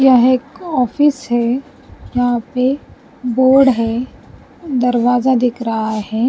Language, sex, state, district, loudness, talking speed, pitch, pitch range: Hindi, female, Punjab, Pathankot, -16 LUFS, 115 wpm, 250 Hz, 240-265 Hz